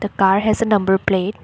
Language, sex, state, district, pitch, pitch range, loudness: English, female, Assam, Kamrup Metropolitan, 200 Hz, 190-210 Hz, -17 LUFS